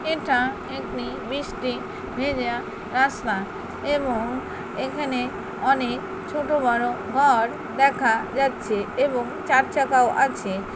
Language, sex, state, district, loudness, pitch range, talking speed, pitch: Bengali, female, West Bengal, Paschim Medinipur, -23 LUFS, 240-275 Hz, 95 wpm, 255 Hz